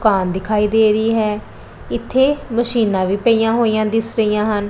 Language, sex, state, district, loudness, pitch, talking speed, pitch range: Punjabi, female, Punjab, Pathankot, -17 LUFS, 220 Hz, 180 wpm, 210-225 Hz